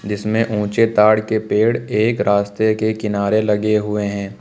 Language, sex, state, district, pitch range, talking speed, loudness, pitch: Hindi, male, Uttar Pradesh, Lucknow, 105-110 Hz, 165 wpm, -17 LUFS, 105 Hz